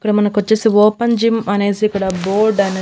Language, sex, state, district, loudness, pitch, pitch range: Telugu, female, Andhra Pradesh, Annamaya, -15 LUFS, 210 Hz, 200-220 Hz